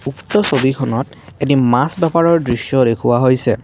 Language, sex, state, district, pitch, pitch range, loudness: Assamese, male, Assam, Kamrup Metropolitan, 130 Hz, 120-145 Hz, -15 LUFS